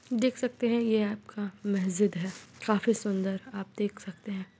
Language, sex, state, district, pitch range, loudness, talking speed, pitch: Hindi, female, Bihar, Muzaffarpur, 195-225 Hz, -30 LUFS, 185 wpm, 205 Hz